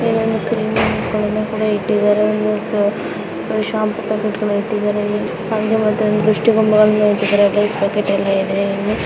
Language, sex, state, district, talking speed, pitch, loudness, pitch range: Kannada, female, Karnataka, Dakshina Kannada, 120 wpm, 210 Hz, -17 LUFS, 205-215 Hz